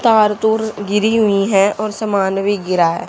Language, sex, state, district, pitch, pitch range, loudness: Hindi, female, Haryana, Jhajjar, 205 Hz, 195-220 Hz, -16 LUFS